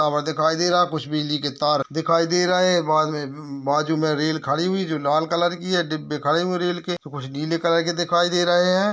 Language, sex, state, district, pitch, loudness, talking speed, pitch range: Hindi, male, Uttar Pradesh, Jyotiba Phule Nagar, 160 Hz, -21 LUFS, 280 wpm, 150-175 Hz